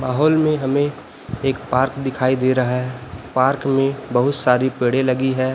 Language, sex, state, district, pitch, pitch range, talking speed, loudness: Hindi, male, Chhattisgarh, Raipur, 130 Hz, 130-135 Hz, 175 wpm, -19 LUFS